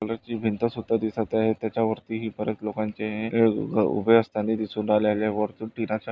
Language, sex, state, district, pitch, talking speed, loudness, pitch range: Marathi, male, Maharashtra, Nagpur, 110 Hz, 155 wpm, -25 LUFS, 105-115 Hz